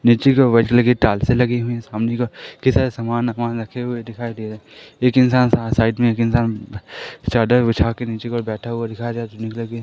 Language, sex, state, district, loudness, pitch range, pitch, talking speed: Hindi, male, Madhya Pradesh, Katni, -19 LUFS, 115-120 Hz, 115 Hz, 250 wpm